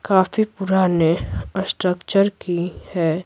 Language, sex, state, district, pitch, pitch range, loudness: Hindi, female, Bihar, Patna, 185 Hz, 170-195 Hz, -20 LUFS